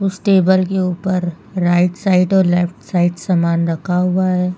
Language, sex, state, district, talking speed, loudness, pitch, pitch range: Hindi, female, Uttar Pradesh, Lucknow, 170 wpm, -16 LUFS, 180 Hz, 175-190 Hz